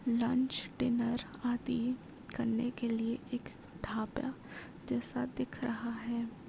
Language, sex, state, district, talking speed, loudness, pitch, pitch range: Hindi, female, Uttar Pradesh, Muzaffarnagar, 110 wpm, -36 LUFS, 235 Hz, 230-245 Hz